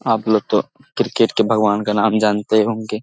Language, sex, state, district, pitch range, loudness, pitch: Hindi, male, Bihar, Samastipur, 105-110 Hz, -17 LUFS, 110 Hz